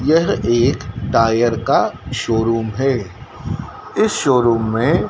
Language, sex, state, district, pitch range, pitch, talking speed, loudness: Hindi, male, Madhya Pradesh, Dhar, 115-130 Hz, 115 Hz, 105 wpm, -17 LUFS